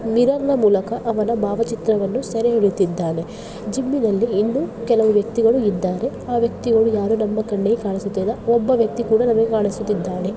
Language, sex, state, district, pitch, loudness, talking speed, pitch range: Kannada, female, Karnataka, Bijapur, 225 Hz, -19 LUFS, 140 wpm, 205-235 Hz